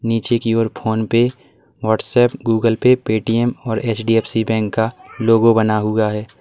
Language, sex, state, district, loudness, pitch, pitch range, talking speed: Hindi, male, Uttar Pradesh, Lalitpur, -17 LUFS, 115 Hz, 110-120 Hz, 160 wpm